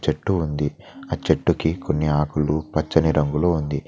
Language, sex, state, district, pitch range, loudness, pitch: Telugu, male, Telangana, Mahabubabad, 75-80 Hz, -22 LUFS, 75 Hz